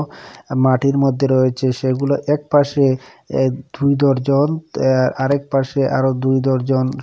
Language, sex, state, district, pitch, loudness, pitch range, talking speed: Bengali, male, Assam, Hailakandi, 135 Hz, -17 LUFS, 130-140 Hz, 130 wpm